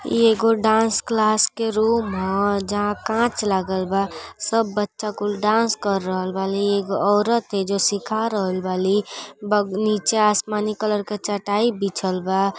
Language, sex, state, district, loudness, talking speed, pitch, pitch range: Bhojpuri, female, Uttar Pradesh, Gorakhpur, -21 LUFS, 150 wpm, 205 Hz, 195-220 Hz